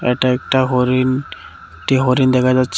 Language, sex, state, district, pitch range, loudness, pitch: Bengali, male, Tripura, West Tripura, 125-130 Hz, -16 LUFS, 130 Hz